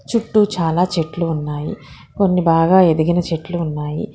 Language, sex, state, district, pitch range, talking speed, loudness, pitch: Telugu, female, Telangana, Hyderabad, 160-180 Hz, 130 wpm, -17 LUFS, 165 Hz